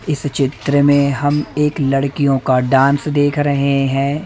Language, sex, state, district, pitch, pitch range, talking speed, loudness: Hindi, male, Madhya Pradesh, Umaria, 140 Hz, 135-145 Hz, 155 wpm, -15 LUFS